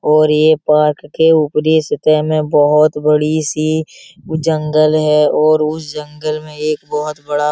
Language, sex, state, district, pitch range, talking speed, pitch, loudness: Hindi, male, Bihar, Araria, 150-155 Hz, 160 wpm, 155 Hz, -14 LUFS